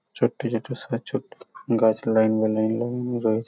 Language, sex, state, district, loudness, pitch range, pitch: Bengali, male, West Bengal, Purulia, -24 LUFS, 110-115 Hz, 110 Hz